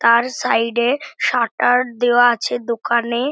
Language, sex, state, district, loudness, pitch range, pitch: Bengali, male, West Bengal, North 24 Parganas, -17 LUFS, 235-245 Hz, 240 Hz